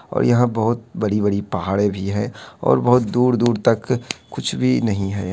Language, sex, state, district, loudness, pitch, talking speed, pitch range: Hindi, male, Bihar, Begusarai, -19 LUFS, 105 Hz, 155 wpm, 100-120 Hz